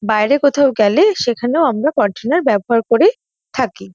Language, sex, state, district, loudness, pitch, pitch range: Bengali, female, West Bengal, North 24 Parganas, -15 LUFS, 260 Hz, 220-300 Hz